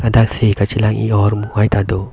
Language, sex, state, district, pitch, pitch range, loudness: Karbi, male, Assam, Karbi Anglong, 105 Hz, 100-110 Hz, -15 LUFS